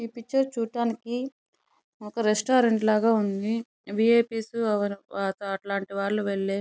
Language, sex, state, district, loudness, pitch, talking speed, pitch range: Telugu, female, Andhra Pradesh, Chittoor, -26 LUFS, 220 Hz, 100 wpm, 200-235 Hz